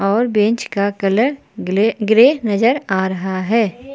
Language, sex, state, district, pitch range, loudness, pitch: Hindi, female, Jharkhand, Palamu, 195-235 Hz, -16 LUFS, 215 Hz